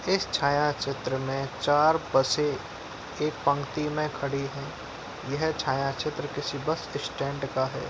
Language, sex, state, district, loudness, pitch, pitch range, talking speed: Hindi, male, Bihar, Darbhanga, -28 LUFS, 140 Hz, 135-150 Hz, 145 wpm